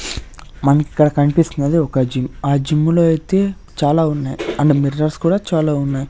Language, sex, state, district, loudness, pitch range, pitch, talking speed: Telugu, male, Andhra Pradesh, Sri Satya Sai, -17 LUFS, 140-165 Hz, 150 Hz, 150 wpm